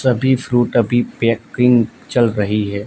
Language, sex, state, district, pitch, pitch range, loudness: Hindi, male, Gujarat, Gandhinagar, 120 Hz, 110-125 Hz, -16 LUFS